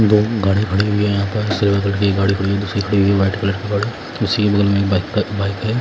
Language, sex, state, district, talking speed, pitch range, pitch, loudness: Hindi, male, Punjab, Fazilka, 260 wpm, 100-105 Hz, 100 Hz, -17 LUFS